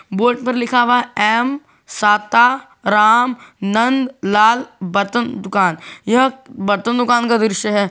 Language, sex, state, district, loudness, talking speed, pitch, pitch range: Hindi, male, Jharkhand, Garhwa, -16 LUFS, 130 wpm, 235 Hz, 210-245 Hz